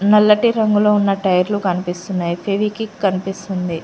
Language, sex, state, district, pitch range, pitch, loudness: Telugu, female, Telangana, Mahabubabad, 185-210 Hz, 195 Hz, -17 LUFS